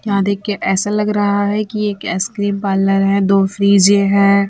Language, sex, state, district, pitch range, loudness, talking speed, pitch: Hindi, female, Chhattisgarh, Raipur, 195-205 Hz, -15 LUFS, 200 wpm, 200 Hz